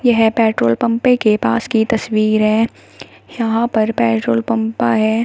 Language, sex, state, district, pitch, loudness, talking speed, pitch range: Hindi, female, Uttar Pradesh, Shamli, 220 Hz, -15 LUFS, 150 wpm, 215-230 Hz